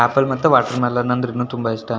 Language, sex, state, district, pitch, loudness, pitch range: Kannada, male, Karnataka, Shimoga, 125 Hz, -18 LUFS, 120-125 Hz